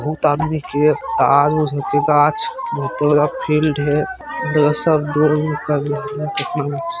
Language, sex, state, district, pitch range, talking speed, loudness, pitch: Hindi, male, Bihar, Madhepura, 145-155 Hz, 75 wpm, -17 LUFS, 150 Hz